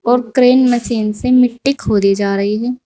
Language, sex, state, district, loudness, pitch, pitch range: Hindi, female, Uttar Pradesh, Saharanpur, -14 LUFS, 245 Hz, 210-250 Hz